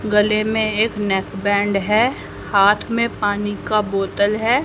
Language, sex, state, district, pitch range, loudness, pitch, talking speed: Hindi, female, Haryana, Rohtak, 205-220 Hz, -18 LUFS, 210 Hz, 140 wpm